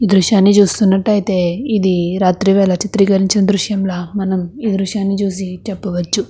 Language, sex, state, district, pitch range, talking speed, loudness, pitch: Telugu, female, Andhra Pradesh, Krishna, 185-205 Hz, 135 wpm, -15 LUFS, 195 Hz